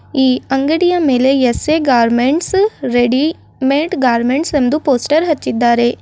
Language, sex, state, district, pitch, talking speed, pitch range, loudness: Kannada, female, Karnataka, Bidar, 270 Hz, 120 wpm, 250-310 Hz, -14 LUFS